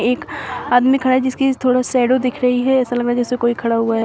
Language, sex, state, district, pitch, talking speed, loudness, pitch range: Hindi, female, Uttar Pradesh, Shamli, 250 Hz, 280 wpm, -17 LUFS, 245-260 Hz